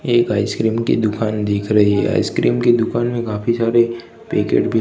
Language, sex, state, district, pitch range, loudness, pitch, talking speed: Hindi, male, Gujarat, Gandhinagar, 105-120 Hz, -17 LUFS, 115 Hz, 185 wpm